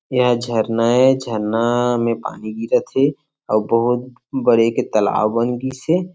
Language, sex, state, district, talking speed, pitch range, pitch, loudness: Chhattisgarhi, male, Chhattisgarh, Sarguja, 165 wpm, 115-130 Hz, 120 Hz, -18 LUFS